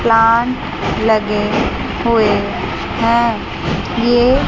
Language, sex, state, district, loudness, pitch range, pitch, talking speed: Hindi, female, Chandigarh, Chandigarh, -15 LUFS, 220-235 Hz, 230 Hz, 65 wpm